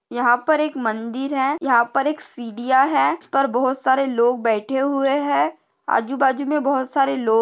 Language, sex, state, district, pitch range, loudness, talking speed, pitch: Hindi, female, Maharashtra, Sindhudurg, 240-275 Hz, -20 LUFS, 185 wpm, 265 Hz